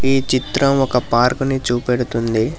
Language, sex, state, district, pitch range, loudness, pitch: Telugu, male, Telangana, Hyderabad, 120-135 Hz, -17 LUFS, 125 Hz